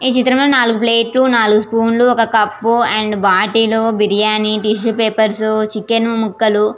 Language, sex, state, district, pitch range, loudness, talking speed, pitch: Telugu, female, Andhra Pradesh, Visakhapatnam, 215-230 Hz, -13 LUFS, 160 wpm, 225 Hz